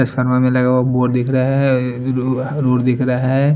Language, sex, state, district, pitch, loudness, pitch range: Hindi, male, Punjab, Fazilka, 130 Hz, -16 LUFS, 125-130 Hz